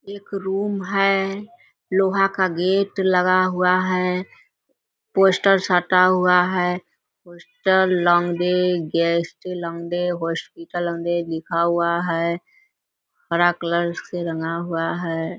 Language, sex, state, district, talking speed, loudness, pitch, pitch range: Hindi, female, Bihar, Madhepura, 90 wpm, -20 LUFS, 180 Hz, 170-190 Hz